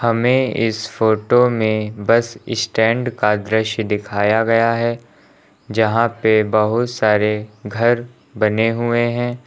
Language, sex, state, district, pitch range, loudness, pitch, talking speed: Hindi, male, Uttar Pradesh, Lucknow, 110-120 Hz, -17 LUFS, 115 Hz, 120 wpm